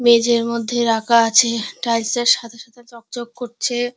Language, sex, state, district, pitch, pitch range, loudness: Bengali, male, West Bengal, Dakshin Dinajpur, 235 Hz, 230-240 Hz, -17 LUFS